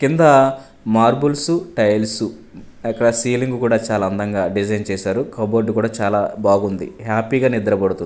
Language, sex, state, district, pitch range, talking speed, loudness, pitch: Telugu, male, Andhra Pradesh, Manyam, 105-125 Hz, 135 wpm, -18 LUFS, 110 Hz